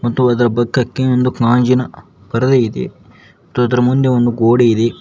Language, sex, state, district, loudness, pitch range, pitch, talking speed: Kannada, male, Karnataka, Koppal, -14 LUFS, 120-125 Hz, 120 Hz, 155 wpm